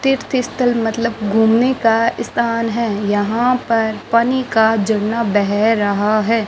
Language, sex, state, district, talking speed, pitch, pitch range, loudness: Hindi, male, Rajasthan, Bikaner, 140 wpm, 225 Hz, 215-235 Hz, -16 LUFS